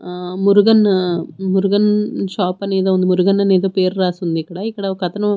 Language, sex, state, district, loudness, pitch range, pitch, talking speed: Telugu, female, Andhra Pradesh, Manyam, -16 LUFS, 180-200 Hz, 190 Hz, 180 wpm